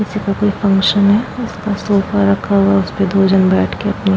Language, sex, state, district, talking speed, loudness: Hindi, female, Bihar, Vaishali, 270 wpm, -14 LUFS